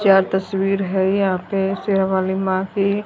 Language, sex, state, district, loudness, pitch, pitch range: Hindi, female, Haryana, Jhajjar, -19 LUFS, 195 Hz, 190-195 Hz